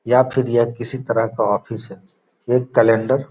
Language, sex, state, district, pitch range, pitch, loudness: Hindi, male, Bihar, Gopalganj, 115-130 Hz, 120 Hz, -18 LUFS